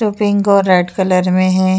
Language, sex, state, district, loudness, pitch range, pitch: Hindi, female, Uttar Pradesh, Jyotiba Phule Nagar, -13 LUFS, 185-200 Hz, 185 Hz